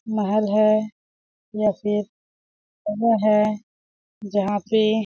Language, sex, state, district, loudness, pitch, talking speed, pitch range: Hindi, female, Chhattisgarh, Balrampur, -21 LUFS, 215 Hz, 70 wpm, 210-215 Hz